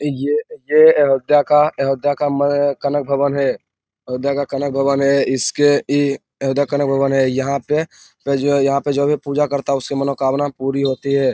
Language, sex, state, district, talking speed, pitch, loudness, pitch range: Hindi, male, Bihar, Lakhisarai, 195 wpm, 140 Hz, -17 LUFS, 135-145 Hz